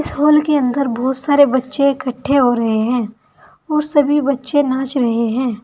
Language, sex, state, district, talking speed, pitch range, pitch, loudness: Hindi, female, Uttar Pradesh, Saharanpur, 180 wpm, 245-285 Hz, 265 Hz, -16 LUFS